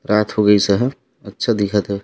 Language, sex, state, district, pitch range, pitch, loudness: Chhattisgarhi, male, Chhattisgarh, Raigarh, 100-120 Hz, 105 Hz, -17 LUFS